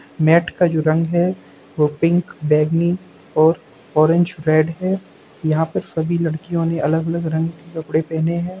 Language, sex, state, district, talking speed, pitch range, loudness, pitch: Hindi, male, Bihar, Sitamarhi, 160 wpm, 155-170 Hz, -19 LUFS, 165 Hz